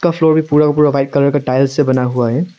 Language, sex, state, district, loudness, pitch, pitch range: Hindi, male, Arunachal Pradesh, Lower Dibang Valley, -13 LUFS, 145 Hz, 135-155 Hz